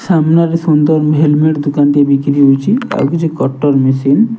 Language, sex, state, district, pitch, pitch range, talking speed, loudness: Odia, male, Odisha, Nuapada, 150 Hz, 140-165 Hz, 165 wpm, -11 LUFS